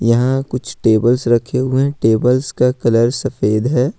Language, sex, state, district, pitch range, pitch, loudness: Hindi, male, Jharkhand, Ranchi, 115-130 Hz, 125 Hz, -15 LUFS